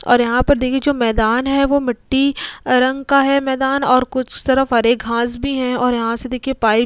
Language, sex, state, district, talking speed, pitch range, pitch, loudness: Hindi, female, Bihar, Vaishali, 225 wpm, 240-270 Hz, 255 Hz, -16 LUFS